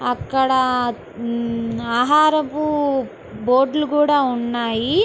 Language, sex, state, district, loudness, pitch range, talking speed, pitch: Telugu, female, Andhra Pradesh, Guntur, -19 LUFS, 235-295 Hz, 60 wpm, 255 Hz